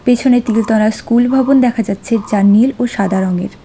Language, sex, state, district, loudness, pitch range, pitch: Bengali, female, West Bengal, Alipurduar, -13 LUFS, 205-245 Hz, 225 Hz